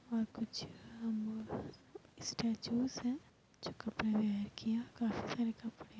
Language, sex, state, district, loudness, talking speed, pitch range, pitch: Hindi, female, Bihar, Muzaffarpur, -40 LUFS, 110 wpm, 220-235 Hz, 225 Hz